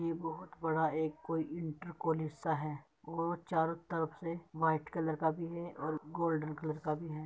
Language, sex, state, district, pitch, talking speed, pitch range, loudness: Hindi, male, Uttar Pradesh, Muzaffarnagar, 160 Hz, 200 wpm, 155-165 Hz, -37 LUFS